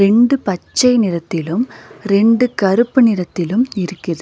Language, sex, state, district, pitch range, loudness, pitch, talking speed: Tamil, female, Tamil Nadu, Nilgiris, 180-240 Hz, -15 LUFS, 205 Hz, 100 wpm